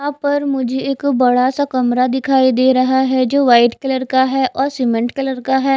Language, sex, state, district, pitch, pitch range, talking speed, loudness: Hindi, female, Chhattisgarh, Raipur, 260 Hz, 255-270 Hz, 220 wpm, -15 LUFS